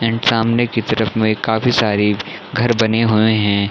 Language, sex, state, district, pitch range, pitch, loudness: Hindi, male, Chhattisgarh, Bilaspur, 110-115 Hz, 110 Hz, -16 LUFS